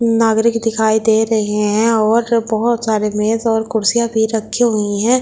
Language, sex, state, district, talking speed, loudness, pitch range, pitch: Hindi, female, Delhi, New Delhi, 170 wpm, -15 LUFS, 220-230 Hz, 220 Hz